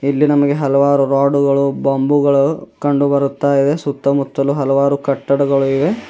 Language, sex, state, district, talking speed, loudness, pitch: Kannada, male, Karnataka, Bidar, 100 wpm, -15 LUFS, 140 Hz